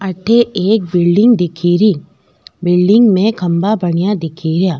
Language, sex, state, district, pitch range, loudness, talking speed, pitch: Rajasthani, female, Rajasthan, Nagaur, 175-210 Hz, -13 LUFS, 110 wpm, 185 Hz